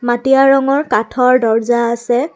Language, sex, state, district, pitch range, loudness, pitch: Assamese, female, Assam, Kamrup Metropolitan, 235-270 Hz, -13 LUFS, 245 Hz